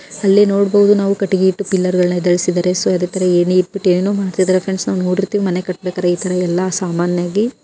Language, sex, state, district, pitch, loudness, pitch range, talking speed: Kannada, female, Karnataka, Gulbarga, 185 Hz, -15 LUFS, 180-195 Hz, 190 wpm